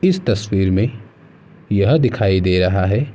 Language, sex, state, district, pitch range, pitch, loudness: Hindi, male, Uttar Pradesh, Muzaffarnagar, 95-125 Hz, 105 Hz, -17 LUFS